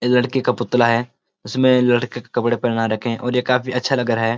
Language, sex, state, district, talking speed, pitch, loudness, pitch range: Hindi, male, Uttarakhand, Uttarkashi, 260 wpm, 125 Hz, -19 LUFS, 120-125 Hz